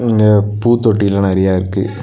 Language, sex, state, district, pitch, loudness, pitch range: Tamil, male, Tamil Nadu, Nilgiris, 105 Hz, -13 LUFS, 95-110 Hz